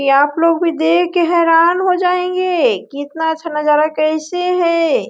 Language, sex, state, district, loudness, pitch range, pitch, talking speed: Hindi, female, Jharkhand, Sahebganj, -14 LUFS, 310-355 Hz, 335 Hz, 175 wpm